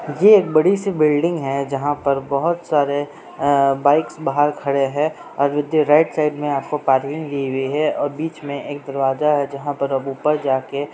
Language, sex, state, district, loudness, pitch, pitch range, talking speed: Hindi, male, Jharkhand, Jamtara, -19 LUFS, 145 Hz, 140-150 Hz, 195 wpm